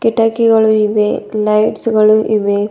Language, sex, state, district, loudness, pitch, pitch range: Kannada, female, Karnataka, Bidar, -13 LUFS, 215 Hz, 210-225 Hz